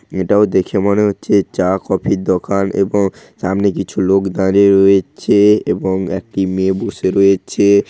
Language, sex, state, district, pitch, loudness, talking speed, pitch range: Bengali, male, West Bengal, Paschim Medinipur, 95 Hz, -14 LUFS, 135 wpm, 95-100 Hz